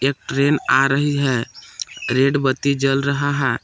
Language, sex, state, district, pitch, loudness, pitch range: Hindi, male, Jharkhand, Palamu, 135 Hz, -19 LUFS, 135-140 Hz